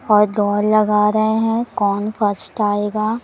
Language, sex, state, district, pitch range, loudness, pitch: Hindi, female, Madhya Pradesh, Umaria, 205-215 Hz, -17 LUFS, 210 Hz